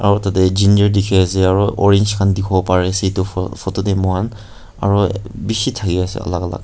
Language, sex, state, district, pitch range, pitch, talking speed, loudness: Nagamese, male, Nagaland, Kohima, 95-100 Hz, 100 Hz, 170 wpm, -16 LUFS